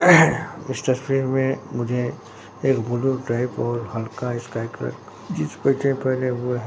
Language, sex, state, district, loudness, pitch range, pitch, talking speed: Hindi, male, Bihar, Katihar, -23 LUFS, 115-135 Hz, 125 Hz, 155 wpm